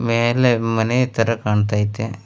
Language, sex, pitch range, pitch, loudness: Kannada, male, 105-120 Hz, 115 Hz, -18 LUFS